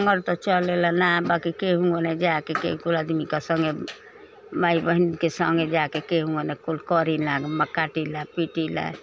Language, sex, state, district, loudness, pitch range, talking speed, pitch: Bhojpuri, female, Uttar Pradesh, Ghazipur, -24 LUFS, 160-175 Hz, 140 wpm, 165 Hz